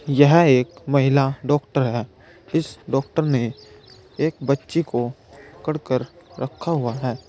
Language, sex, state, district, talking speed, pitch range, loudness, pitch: Hindi, male, Uttar Pradesh, Saharanpur, 130 wpm, 125-145 Hz, -21 LUFS, 135 Hz